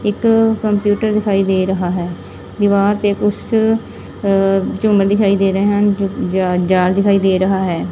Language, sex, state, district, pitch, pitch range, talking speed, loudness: Punjabi, female, Punjab, Fazilka, 200 Hz, 190-210 Hz, 160 wpm, -15 LUFS